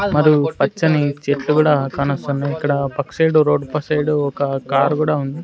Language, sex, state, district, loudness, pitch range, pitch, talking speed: Telugu, male, Andhra Pradesh, Sri Satya Sai, -18 LUFS, 140-155 Hz, 145 Hz, 165 wpm